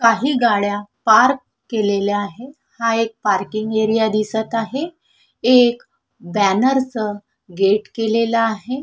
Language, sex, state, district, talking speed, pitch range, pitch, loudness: Marathi, female, Maharashtra, Sindhudurg, 110 wpm, 205-240 Hz, 225 Hz, -18 LUFS